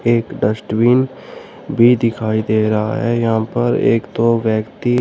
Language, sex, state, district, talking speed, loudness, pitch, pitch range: Hindi, male, Uttar Pradesh, Shamli, 145 wpm, -16 LUFS, 115 Hz, 110-120 Hz